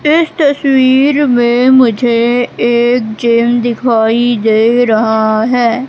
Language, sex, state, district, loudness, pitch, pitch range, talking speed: Hindi, female, Madhya Pradesh, Katni, -10 LUFS, 240 Hz, 230-255 Hz, 100 wpm